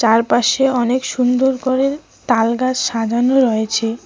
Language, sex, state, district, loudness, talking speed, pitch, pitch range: Bengali, female, West Bengal, Cooch Behar, -16 LUFS, 105 wpm, 245 Hz, 230-260 Hz